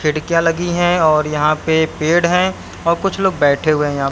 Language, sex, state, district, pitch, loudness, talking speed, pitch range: Hindi, male, Haryana, Jhajjar, 160 Hz, -16 LUFS, 220 wpm, 155-175 Hz